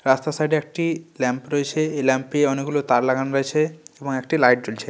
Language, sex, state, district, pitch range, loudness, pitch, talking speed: Bengali, male, West Bengal, North 24 Parganas, 130-155 Hz, -21 LUFS, 140 Hz, 220 wpm